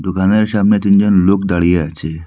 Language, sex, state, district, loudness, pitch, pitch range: Bengali, male, Assam, Hailakandi, -13 LUFS, 95 Hz, 85-100 Hz